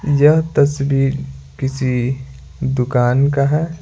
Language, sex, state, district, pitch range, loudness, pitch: Hindi, male, Bihar, Patna, 125-145 Hz, -17 LUFS, 135 Hz